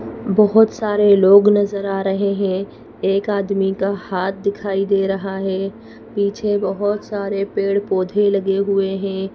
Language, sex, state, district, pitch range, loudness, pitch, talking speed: Hindi, female, Madhya Pradesh, Bhopal, 195-205 Hz, -18 LUFS, 200 Hz, 140 wpm